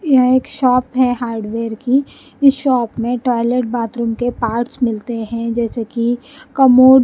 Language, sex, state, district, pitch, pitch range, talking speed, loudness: Hindi, female, Punjab, Kapurthala, 245 Hz, 230-260 Hz, 160 wpm, -16 LUFS